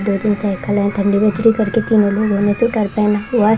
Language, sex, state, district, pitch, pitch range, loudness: Hindi, female, Maharashtra, Washim, 210 Hz, 205-215 Hz, -16 LUFS